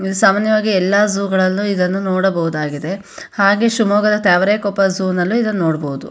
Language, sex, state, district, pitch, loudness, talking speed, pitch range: Kannada, female, Karnataka, Shimoga, 195 Hz, -16 LUFS, 130 wpm, 185-205 Hz